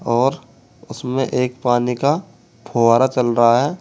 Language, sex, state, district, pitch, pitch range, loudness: Hindi, male, Uttar Pradesh, Saharanpur, 125 Hz, 120-135 Hz, -17 LUFS